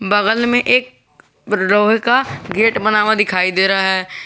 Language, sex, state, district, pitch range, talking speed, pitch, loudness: Hindi, male, Jharkhand, Garhwa, 190-230 Hz, 170 wpm, 210 Hz, -15 LUFS